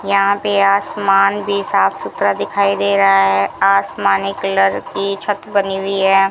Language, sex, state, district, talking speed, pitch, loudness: Hindi, female, Rajasthan, Bikaner, 160 wpm, 195 Hz, -15 LUFS